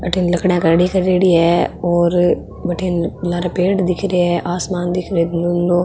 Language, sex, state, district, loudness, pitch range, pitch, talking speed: Marwari, female, Rajasthan, Nagaur, -16 LUFS, 175-180 Hz, 175 Hz, 175 wpm